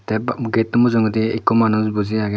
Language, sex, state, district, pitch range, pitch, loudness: Chakma, male, Tripura, Dhalai, 110-115 Hz, 110 Hz, -18 LUFS